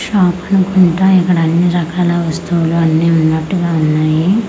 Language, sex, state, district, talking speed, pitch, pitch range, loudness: Telugu, female, Andhra Pradesh, Manyam, 120 wpm, 175 Hz, 165-180 Hz, -13 LUFS